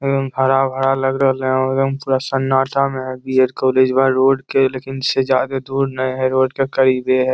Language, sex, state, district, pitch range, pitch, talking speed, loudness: Magahi, male, Bihar, Lakhisarai, 130-135 Hz, 135 Hz, 205 wpm, -17 LUFS